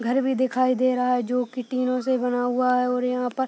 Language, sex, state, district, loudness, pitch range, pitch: Hindi, female, Bihar, Purnia, -23 LUFS, 250-255 Hz, 250 Hz